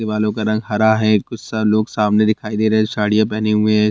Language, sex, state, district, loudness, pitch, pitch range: Hindi, male, Bihar, Bhagalpur, -17 LUFS, 110 Hz, 105-110 Hz